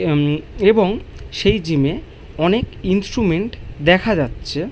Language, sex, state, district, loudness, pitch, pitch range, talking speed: Bengali, male, West Bengal, Malda, -18 LUFS, 175 Hz, 145-200 Hz, 100 wpm